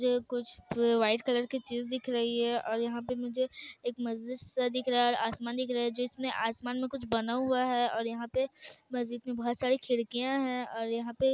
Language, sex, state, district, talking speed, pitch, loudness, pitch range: Hindi, female, Bihar, Kishanganj, 225 wpm, 245 Hz, -32 LUFS, 235-255 Hz